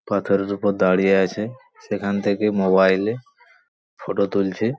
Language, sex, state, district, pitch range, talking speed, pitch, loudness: Bengali, male, West Bengal, Paschim Medinipur, 95-105 Hz, 125 wpm, 100 Hz, -20 LUFS